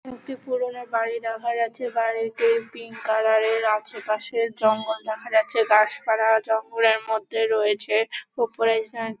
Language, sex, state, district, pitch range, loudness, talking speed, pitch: Bengali, female, West Bengal, Dakshin Dinajpur, 220-235 Hz, -23 LUFS, 125 wpm, 225 Hz